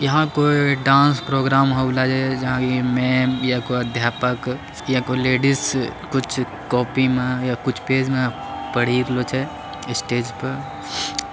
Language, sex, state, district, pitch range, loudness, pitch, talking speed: Angika, male, Bihar, Bhagalpur, 125-135 Hz, -20 LUFS, 130 Hz, 150 wpm